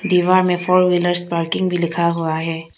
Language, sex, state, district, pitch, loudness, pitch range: Hindi, female, Arunachal Pradesh, Papum Pare, 175 Hz, -17 LUFS, 165-180 Hz